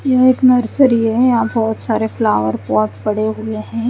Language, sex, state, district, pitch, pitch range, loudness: Hindi, female, Chandigarh, Chandigarh, 225 Hz, 215-245 Hz, -15 LUFS